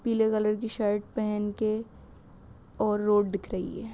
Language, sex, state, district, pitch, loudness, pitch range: Hindi, female, Uttar Pradesh, Hamirpur, 210 Hz, -28 LUFS, 205-220 Hz